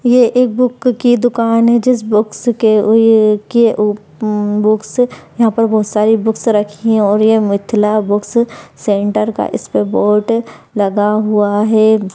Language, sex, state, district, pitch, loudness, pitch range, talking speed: Hindi, male, Bihar, Madhepura, 220 Hz, -13 LUFS, 210-230 Hz, 145 wpm